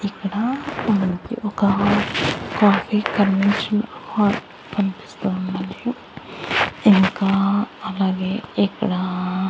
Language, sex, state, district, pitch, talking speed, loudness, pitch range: Telugu, male, Andhra Pradesh, Annamaya, 200 Hz, 80 wpm, -21 LUFS, 190-210 Hz